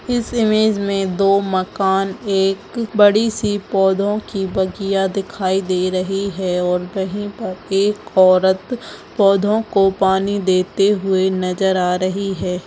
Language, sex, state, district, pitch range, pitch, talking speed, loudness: Hindi, female, Chhattisgarh, Bastar, 190-205 Hz, 195 Hz, 135 wpm, -17 LUFS